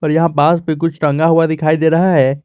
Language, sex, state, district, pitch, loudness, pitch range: Hindi, male, Jharkhand, Garhwa, 160 Hz, -13 LUFS, 155-165 Hz